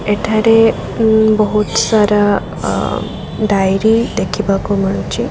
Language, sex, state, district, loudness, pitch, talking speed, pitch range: Odia, female, Odisha, Khordha, -14 LUFS, 210 Hz, 90 wpm, 200-220 Hz